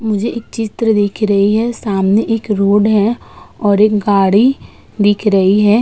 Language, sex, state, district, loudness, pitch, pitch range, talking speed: Hindi, female, Uttar Pradesh, Budaun, -13 LUFS, 210 Hz, 200-225 Hz, 155 wpm